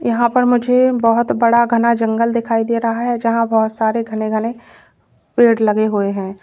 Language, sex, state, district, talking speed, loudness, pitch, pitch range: Hindi, female, Uttar Pradesh, Lalitpur, 185 wpm, -16 LUFS, 230 Hz, 220-235 Hz